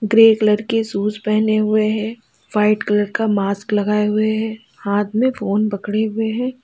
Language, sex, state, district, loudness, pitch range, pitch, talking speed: Hindi, female, Uttar Pradesh, Lalitpur, -18 LUFS, 210-220 Hz, 215 Hz, 180 wpm